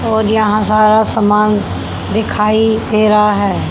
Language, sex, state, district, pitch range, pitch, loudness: Hindi, female, Haryana, Jhajjar, 210-220 Hz, 215 Hz, -13 LUFS